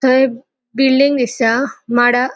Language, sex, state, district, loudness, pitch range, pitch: Konkani, female, Goa, North and South Goa, -14 LUFS, 245-265 Hz, 255 Hz